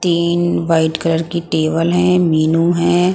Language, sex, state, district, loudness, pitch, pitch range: Hindi, female, Punjab, Pathankot, -15 LUFS, 170 Hz, 165-175 Hz